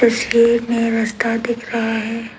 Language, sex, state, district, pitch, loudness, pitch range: Hindi, female, Arunachal Pradesh, Lower Dibang Valley, 230 Hz, -18 LUFS, 230-235 Hz